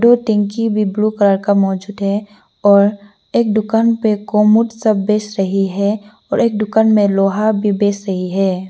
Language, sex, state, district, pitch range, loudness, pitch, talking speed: Hindi, female, Arunachal Pradesh, Lower Dibang Valley, 200-215 Hz, -15 LUFS, 210 Hz, 170 wpm